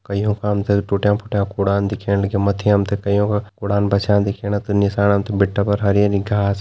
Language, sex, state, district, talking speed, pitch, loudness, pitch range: Garhwali, male, Uttarakhand, Tehri Garhwal, 180 wpm, 100 Hz, -18 LUFS, 100-105 Hz